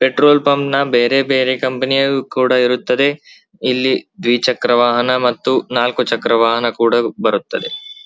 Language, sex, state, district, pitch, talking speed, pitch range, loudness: Kannada, male, Karnataka, Belgaum, 125 Hz, 120 wpm, 120-135 Hz, -15 LUFS